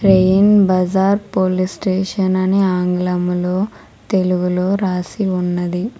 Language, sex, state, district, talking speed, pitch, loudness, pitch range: Telugu, female, Telangana, Hyderabad, 90 wpm, 185 Hz, -16 LUFS, 180-195 Hz